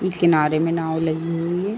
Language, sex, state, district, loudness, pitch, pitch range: Hindi, female, Jharkhand, Sahebganj, -21 LUFS, 165 Hz, 160-175 Hz